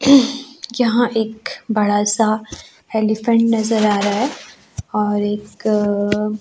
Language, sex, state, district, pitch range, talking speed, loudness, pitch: Hindi, female, Goa, North and South Goa, 210-240 Hz, 110 wpm, -18 LUFS, 220 Hz